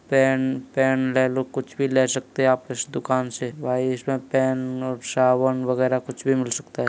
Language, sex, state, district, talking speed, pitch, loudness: Hindi, male, Uttar Pradesh, Hamirpur, 190 wpm, 130 Hz, -23 LUFS